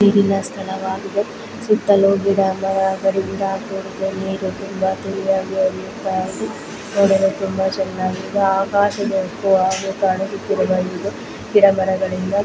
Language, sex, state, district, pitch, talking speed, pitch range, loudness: Kannada, female, Karnataka, Belgaum, 195 Hz, 80 wpm, 190-200 Hz, -19 LUFS